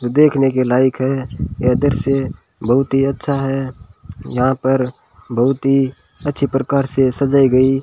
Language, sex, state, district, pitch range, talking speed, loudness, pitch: Hindi, male, Rajasthan, Bikaner, 125-135 Hz, 145 wpm, -17 LUFS, 130 Hz